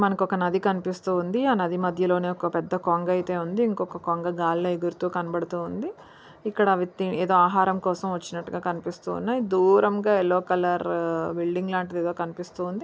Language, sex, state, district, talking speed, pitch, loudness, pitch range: Telugu, female, Andhra Pradesh, Krishna, 140 wpm, 180 Hz, -25 LUFS, 175-190 Hz